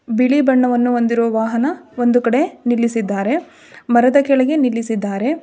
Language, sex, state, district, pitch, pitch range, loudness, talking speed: Kannada, female, Karnataka, Dharwad, 245 Hz, 235-280 Hz, -16 LUFS, 110 wpm